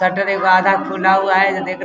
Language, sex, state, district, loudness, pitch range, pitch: Hindi, male, Bihar, Vaishali, -15 LUFS, 185-195 Hz, 190 Hz